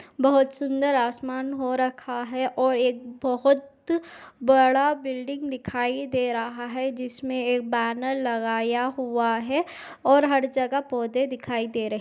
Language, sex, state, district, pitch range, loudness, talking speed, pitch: Hindi, female, Uttar Pradesh, Deoria, 245-270 Hz, -25 LUFS, 145 wpm, 255 Hz